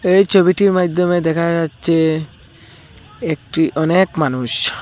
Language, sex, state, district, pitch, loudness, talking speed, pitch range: Bengali, male, Assam, Hailakandi, 165 Hz, -16 LUFS, 100 wpm, 155-180 Hz